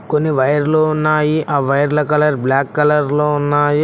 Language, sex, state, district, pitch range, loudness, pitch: Telugu, male, Telangana, Mahabubabad, 145-150 Hz, -15 LUFS, 150 Hz